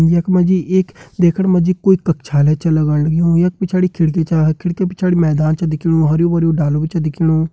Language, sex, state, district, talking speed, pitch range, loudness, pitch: Hindi, male, Uttarakhand, Uttarkashi, 215 wpm, 155-180 Hz, -15 LUFS, 165 Hz